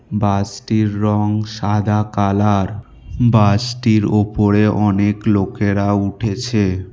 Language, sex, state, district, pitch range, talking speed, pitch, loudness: Bengali, male, West Bengal, Alipurduar, 100-105 Hz, 80 wpm, 105 Hz, -17 LUFS